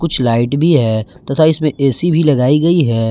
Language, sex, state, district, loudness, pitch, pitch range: Hindi, male, Jharkhand, Garhwa, -13 LUFS, 150 Hz, 125-165 Hz